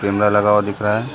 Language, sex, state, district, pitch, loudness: Hindi, male, Chhattisgarh, Sarguja, 105 Hz, -16 LUFS